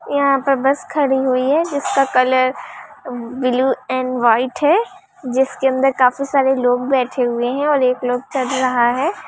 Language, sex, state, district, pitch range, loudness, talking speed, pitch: Hindi, female, Chhattisgarh, Jashpur, 250-275 Hz, -17 LUFS, 170 wpm, 260 Hz